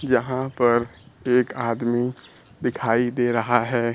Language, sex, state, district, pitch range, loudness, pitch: Hindi, male, Bihar, Kaimur, 120-125 Hz, -23 LUFS, 120 Hz